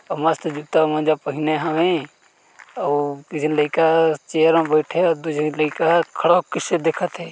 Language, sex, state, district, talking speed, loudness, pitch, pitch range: Chhattisgarhi, male, Chhattisgarh, Korba, 195 wpm, -20 LUFS, 160 Hz, 150-165 Hz